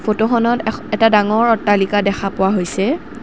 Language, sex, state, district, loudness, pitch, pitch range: Assamese, female, Assam, Kamrup Metropolitan, -16 LUFS, 215 Hz, 200-230 Hz